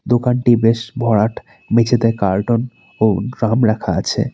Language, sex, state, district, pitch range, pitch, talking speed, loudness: Bengali, male, West Bengal, Alipurduar, 110-120 Hz, 115 Hz, 125 wpm, -16 LUFS